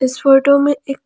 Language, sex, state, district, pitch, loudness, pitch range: Hindi, female, Jharkhand, Palamu, 275 Hz, -12 LUFS, 270-280 Hz